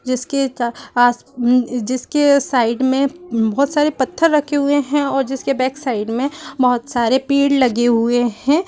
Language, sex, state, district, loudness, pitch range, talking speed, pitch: Hindi, female, Chhattisgarh, Raigarh, -17 LUFS, 245-280 Hz, 150 wpm, 260 Hz